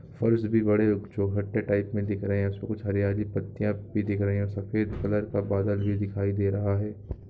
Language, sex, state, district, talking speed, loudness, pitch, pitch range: Hindi, male, Jharkhand, Sahebganj, 220 wpm, -28 LUFS, 100 Hz, 100-105 Hz